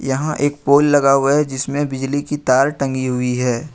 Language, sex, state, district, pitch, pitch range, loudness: Hindi, male, Jharkhand, Ranchi, 140 Hz, 130-145 Hz, -17 LUFS